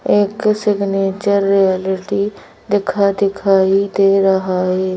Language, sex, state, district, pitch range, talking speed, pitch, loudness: Hindi, female, Madhya Pradesh, Bhopal, 190-200 Hz, 95 wpm, 195 Hz, -15 LUFS